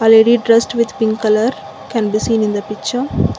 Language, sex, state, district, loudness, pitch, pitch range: English, female, Karnataka, Bangalore, -15 LUFS, 225 Hz, 215-235 Hz